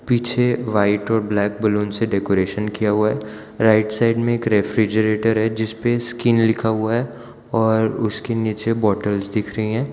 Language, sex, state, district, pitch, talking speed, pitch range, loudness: Hindi, male, Gujarat, Valsad, 110 Hz, 175 wpm, 105-115 Hz, -19 LUFS